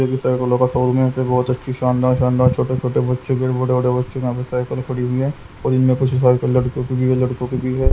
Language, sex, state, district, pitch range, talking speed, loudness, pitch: Hindi, male, Haryana, Jhajjar, 125-130 Hz, 225 wpm, -18 LUFS, 125 Hz